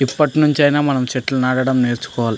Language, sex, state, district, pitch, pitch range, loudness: Telugu, male, Andhra Pradesh, Anantapur, 130 Hz, 125-145 Hz, -16 LUFS